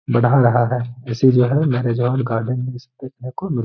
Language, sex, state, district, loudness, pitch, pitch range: Hindi, male, Bihar, Gaya, -18 LUFS, 125 Hz, 120-130 Hz